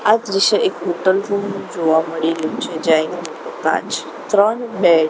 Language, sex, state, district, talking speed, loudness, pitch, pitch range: Gujarati, female, Gujarat, Gandhinagar, 175 wpm, -18 LUFS, 190 Hz, 165-210 Hz